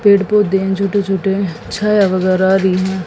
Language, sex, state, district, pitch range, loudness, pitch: Hindi, female, Haryana, Jhajjar, 190-200 Hz, -14 LUFS, 195 Hz